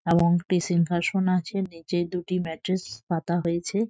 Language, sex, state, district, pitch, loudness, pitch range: Bengali, female, West Bengal, Jhargram, 175 Hz, -26 LUFS, 170-185 Hz